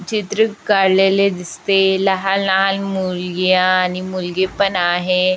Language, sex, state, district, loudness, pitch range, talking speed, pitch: Marathi, female, Maharashtra, Aurangabad, -16 LUFS, 185-195 Hz, 110 wpm, 190 Hz